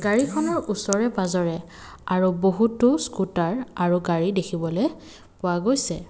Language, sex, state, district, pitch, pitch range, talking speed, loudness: Assamese, male, Assam, Kamrup Metropolitan, 190 Hz, 175-240 Hz, 110 wpm, -23 LUFS